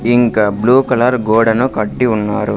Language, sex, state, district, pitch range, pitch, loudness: Telugu, male, Andhra Pradesh, Sri Satya Sai, 110-125 Hz, 115 Hz, -13 LUFS